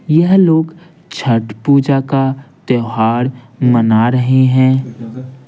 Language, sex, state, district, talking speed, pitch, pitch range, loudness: Hindi, male, Bihar, Patna, 100 wpm, 130 Hz, 120-140 Hz, -13 LUFS